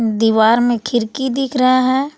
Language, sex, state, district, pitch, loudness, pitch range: Hindi, female, Jharkhand, Palamu, 245 Hz, -15 LUFS, 225-260 Hz